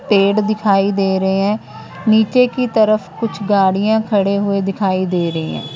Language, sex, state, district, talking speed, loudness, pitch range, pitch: Hindi, female, Punjab, Fazilka, 165 wpm, -16 LUFS, 190-215 Hz, 200 Hz